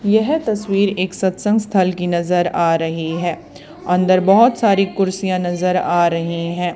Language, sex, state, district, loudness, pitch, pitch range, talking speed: Hindi, female, Haryana, Charkhi Dadri, -17 LUFS, 185 Hz, 175-200 Hz, 160 wpm